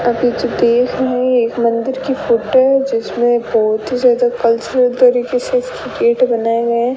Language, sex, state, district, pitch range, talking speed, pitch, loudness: Hindi, female, Rajasthan, Bikaner, 235-260 Hz, 130 wpm, 245 Hz, -14 LUFS